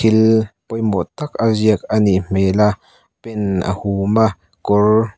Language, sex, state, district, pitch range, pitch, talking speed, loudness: Mizo, male, Mizoram, Aizawl, 100-110 Hz, 105 Hz, 150 wpm, -17 LUFS